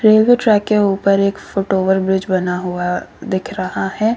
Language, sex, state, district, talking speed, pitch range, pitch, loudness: Hindi, female, Uttar Pradesh, Lalitpur, 185 wpm, 190-215 Hz, 195 Hz, -16 LUFS